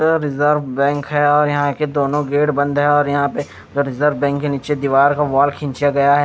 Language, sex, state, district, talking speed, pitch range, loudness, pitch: Hindi, male, Chandigarh, Chandigarh, 220 wpm, 140-145 Hz, -17 LUFS, 145 Hz